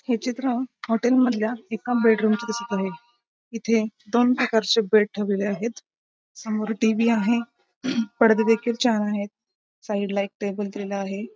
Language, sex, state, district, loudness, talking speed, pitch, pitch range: Marathi, female, Maharashtra, Pune, -23 LUFS, 150 wpm, 225 Hz, 210-235 Hz